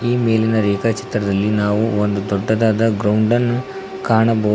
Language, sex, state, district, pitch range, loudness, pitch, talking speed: Kannada, male, Karnataka, Koppal, 105-115 Hz, -17 LUFS, 110 Hz, 105 wpm